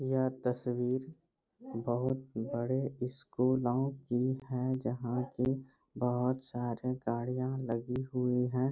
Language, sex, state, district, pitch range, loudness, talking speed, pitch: Hindi, male, Bihar, Bhagalpur, 125-130 Hz, -35 LUFS, 105 wpm, 125 Hz